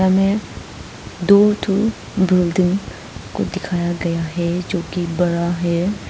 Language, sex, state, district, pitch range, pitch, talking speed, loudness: Hindi, female, Arunachal Pradesh, Papum Pare, 175-195 Hz, 180 Hz, 110 wpm, -19 LUFS